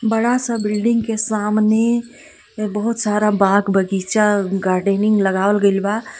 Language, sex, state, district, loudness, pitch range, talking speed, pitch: Bhojpuri, female, Jharkhand, Palamu, -17 LUFS, 200-225 Hz, 115 wpm, 210 Hz